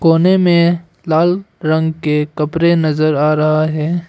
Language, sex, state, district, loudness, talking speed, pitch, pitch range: Hindi, male, Arunachal Pradesh, Longding, -14 LUFS, 145 wpm, 160 Hz, 155-170 Hz